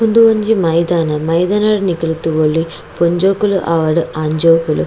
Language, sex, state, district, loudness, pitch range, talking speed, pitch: Tulu, female, Karnataka, Dakshina Kannada, -14 LUFS, 160-195 Hz, 125 wpm, 170 Hz